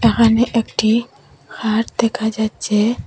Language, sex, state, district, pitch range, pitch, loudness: Bengali, female, Assam, Hailakandi, 220-235 Hz, 225 Hz, -17 LUFS